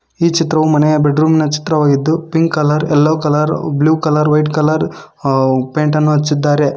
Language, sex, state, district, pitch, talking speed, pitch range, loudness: Kannada, male, Karnataka, Koppal, 150 Hz, 160 wpm, 150-155 Hz, -13 LUFS